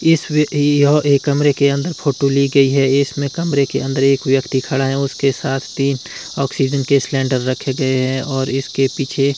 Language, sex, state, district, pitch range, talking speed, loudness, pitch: Hindi, male, Himachal Pradesh, Shimla, 135-140 Hz, 205 wpm, -16 LUFS, 140 Hz